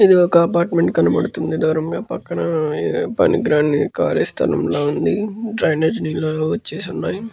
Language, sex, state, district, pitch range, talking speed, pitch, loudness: Telugu, male, Andhra Pradesh, Guntur, 155-175 Hz, 130 wpm, 160 Hz, -18 LUFS